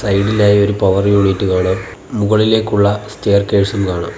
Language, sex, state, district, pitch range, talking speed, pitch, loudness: Malayalam, male, Kerala, Kollam, 95-105 Hz, 115 wpm, 100 Hz, -14 LUFS